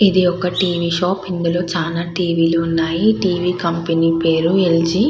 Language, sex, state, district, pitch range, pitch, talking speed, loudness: Telugu, female, Andhra Pradesh, Krishna, 165-180 Hz, 170 Hz, 175 wpm, -17 LUFS